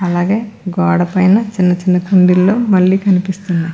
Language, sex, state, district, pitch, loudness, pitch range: Telugu, female, Andhra Pradesh, Krishna, 185 Hz, -13 LUFS, 180-195 Hz